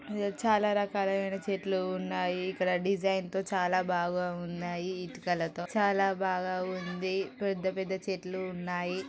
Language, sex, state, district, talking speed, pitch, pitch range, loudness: Telugu, female, Telangana, Karimnagar, 130 wpm, 185 Hz, 180-195 Hz, -32 LUFS